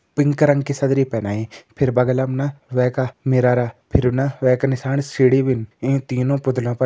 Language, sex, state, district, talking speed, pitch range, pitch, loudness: Hindi, male, Uttarakhand, Tehri Garhwal, 200 wpm, 125-135 Hz, 130 Hz, -19 LUFS